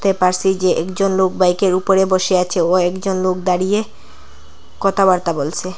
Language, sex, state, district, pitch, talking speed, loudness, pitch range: Bengali, female, Assam, Hailakandi, 185 Hz, 145 wpm, -16 LUFS, 180-190 Hz